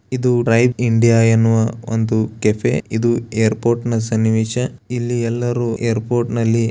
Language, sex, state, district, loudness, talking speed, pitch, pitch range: Kannada, male, Karnataka, Bellary, -17 LUFS, 135 wpm, 115 Hz, 110-120 Hz